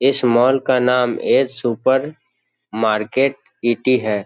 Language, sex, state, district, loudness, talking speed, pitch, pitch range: Hindi, male, Bihar, Jamui, -17 LUFS, 100 wpm, 125 Hz, 115-135 Hz